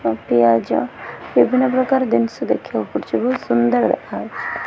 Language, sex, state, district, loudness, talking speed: Odia, female, Odisha, Khordha, -18 LUFS, 130 wpm